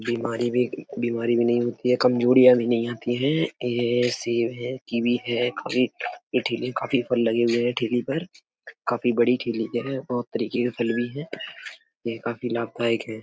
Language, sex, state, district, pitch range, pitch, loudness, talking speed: Hindi, male, Uttar Pradesh, Etah, 120-125 Hz, 120 Hz, -24 LUFS, 185 wpm